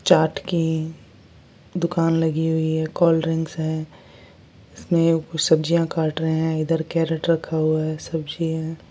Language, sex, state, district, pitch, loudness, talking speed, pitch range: Hindi, female, Bihar, West Champaran, 160 Hz, -22 LUFS, 150 wpm, 160-165 Hz